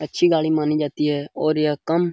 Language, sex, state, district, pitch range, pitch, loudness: Hindi, male, Bihar, Jamui, 150-160 Hz, 150 Hz, -21 LUFS